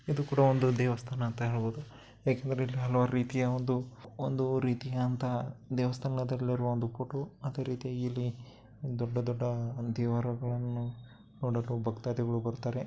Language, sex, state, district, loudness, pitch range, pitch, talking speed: Kannada, male, Karnataka, Bellary, -33 LUFS, 120-130 Hz, 125 Hz, 115 wpm